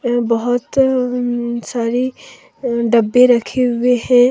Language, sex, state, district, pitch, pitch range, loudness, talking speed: Hindi, female, Jharkhand, Deoghar, 245 Hz, 235-250 Hz, -16 LUFS, 85 wpm